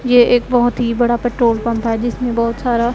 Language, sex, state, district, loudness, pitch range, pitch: Hindi, female, Punjab, Pathankot, -16 LUFS, 235-245 Hz, 240 Hz